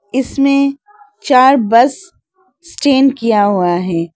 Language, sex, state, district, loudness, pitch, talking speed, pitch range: Hindi, female, Arunachal Pradesh, Lower Dibang Valley, -12 LUFS, 265 Hz, 100 wpm, 215-280 Hz